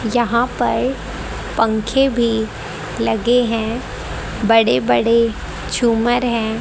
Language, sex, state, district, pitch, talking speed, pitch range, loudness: Hindi, female, Haryana, Rohtak, 230 Hz, 90 wpm, 220-240 Hz, -18 LUFS